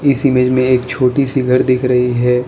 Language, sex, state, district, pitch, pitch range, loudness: Hindi, male, Arunachal Pradesh, Lower Dibang Valley, 125 Hz, 125-130 Hz, -13 LUFS